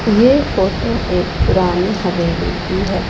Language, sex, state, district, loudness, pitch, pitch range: Hindi, female, Punjab, Pathankot, -16 LUFS, 185 Hz, 180-220 Hz